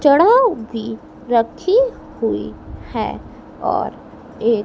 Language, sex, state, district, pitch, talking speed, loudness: Hindi, female, Madhya Pradesh, Dhar, 245 Hz, 90 wpm, -18 LUFS